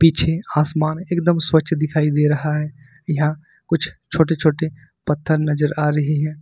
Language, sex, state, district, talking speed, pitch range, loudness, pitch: Hindi, male, Jharkhand, Ranchi, 160 wpm, 150-160 Hz, -19 LUFS, 155 Hz